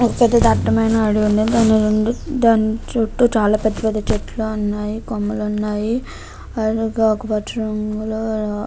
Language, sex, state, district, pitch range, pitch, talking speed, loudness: Telugu, female, Andhra Pradesh, Krishna, 215-225 Hz, 220 Hz, 125 wpm, -18 LUFS